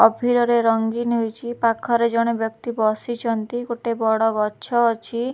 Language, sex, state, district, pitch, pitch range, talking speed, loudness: Odia, female, Odisha, Khordha, 230 Hz, 225-235 Hz, 125 wpm, -21 LUFS